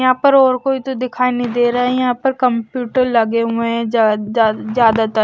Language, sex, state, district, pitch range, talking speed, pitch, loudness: Hindi, male, Maharashtra, Washim, 230-255 Hz, 195 wpm, 245 Hz, -16 LUFS